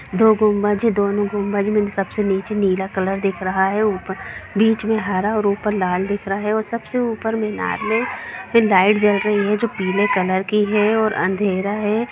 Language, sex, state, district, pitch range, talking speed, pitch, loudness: Hindi, female, Jharkhand, Jamtara, 195-215 Hz, 195 wpm, 205 Hz, -19 LUFS